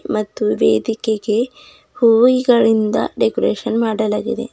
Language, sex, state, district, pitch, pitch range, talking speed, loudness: Kannada, female, Karnataka, Bidar, 225 Hz, 215-245 Hz, 65 wpm, -16 LUFS